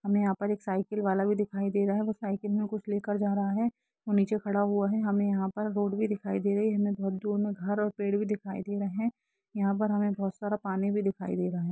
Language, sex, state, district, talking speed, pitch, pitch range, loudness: Hindi, female, Jharkhand, Sahebganj, 280 wpm, 205 Hz, 200-210 Hz, -30 LUFS